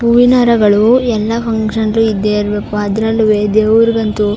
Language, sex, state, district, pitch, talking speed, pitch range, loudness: Kannada, female, Karnataka, Chamarajanagar, 220 Hz, 125 wpm, 210-230 Hz, -12 LUFS